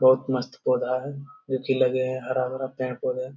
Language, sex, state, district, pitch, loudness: Hindi, male, Bihar, Jamui, 130 Hz, -26 LUFS